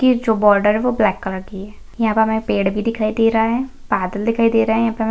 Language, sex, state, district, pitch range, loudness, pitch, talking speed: Hindi, female, Bihar, Gaya, 210-230 Hz, -17 LUFS, 220 Hz, 295 wpm